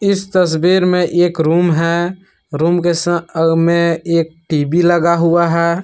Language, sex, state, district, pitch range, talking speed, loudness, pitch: Hindi, male, Jharkhand, Palamu, 165-175 Hz, 155 wpm, -14 LUFS, 170 Hz